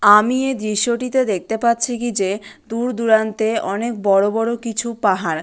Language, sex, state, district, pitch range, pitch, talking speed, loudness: Bengali, female, West Bengal, Malda, 205-235 Hz, 225 Hz, 155 wpm, -19 LUFS